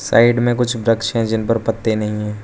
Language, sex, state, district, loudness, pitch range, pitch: Hindi, male, Arunachal Pradesh, Lower Dibang Valley, -17 LUFS, 110-115 Hz, 115 Hz